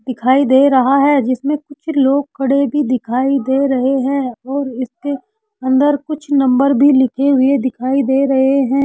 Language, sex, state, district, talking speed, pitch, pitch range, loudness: Hindi, male, Rajasthan, Jaipur, 155 wpm, 275 Hz, 260-280 Hz, -15 LUFS